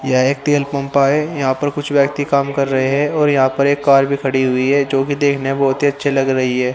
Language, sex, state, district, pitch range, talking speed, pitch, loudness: Hindi, male, Haryana, Rohtak, 135-140 Hz, 285 wpm, 140 Hz, -16 LUFS